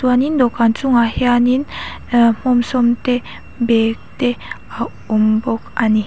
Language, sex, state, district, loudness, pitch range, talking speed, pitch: Mizo, female, Mizoram, Aizawl, -16 LUFS, 230-250 Hz, 140 wpm, 240 Hz